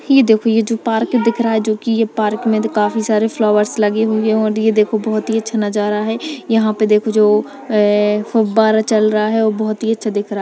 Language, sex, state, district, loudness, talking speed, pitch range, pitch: Hindi, female, Bihar, Purnia, -15 LUFS, 255 wpm, 215-225 Hz, 220 Hz